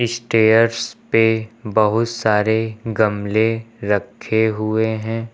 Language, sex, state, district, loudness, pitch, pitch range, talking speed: Hindi, male, Uttar Pradesh, Lucknow, -18 LUFS, 110 Hz, 110-115 Hz, 90 wpm